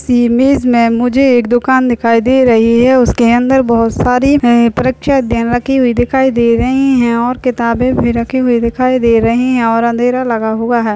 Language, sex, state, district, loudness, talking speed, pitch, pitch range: Hindi, female, Uttar Pradesh, Budaun, -11 LUFS, 195 wpm, 245 Hz, 235-255 Hz